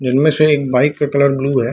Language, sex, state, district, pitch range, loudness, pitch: Hindi, male, Bihar, Samastipur, 130-150 Hz, -14 LUFS, 140 Hz